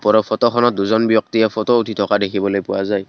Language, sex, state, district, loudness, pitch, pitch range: Assamese, male, Assam, Kamrup Metropolitan, -17 LUFS, 110 Hz, 100-115 Hz